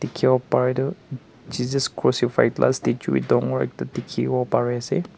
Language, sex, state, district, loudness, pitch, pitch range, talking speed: Nagamese, male, Nagaland, Kohima, -22 LUFS, 130 Hz, 125-150 Hz, 150 wpm